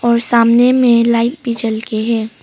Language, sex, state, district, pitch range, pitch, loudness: Hindi, female, Arunachal Pradesh, Papum Pare, 230-240 Hz, 235 Hz, -13 LUFS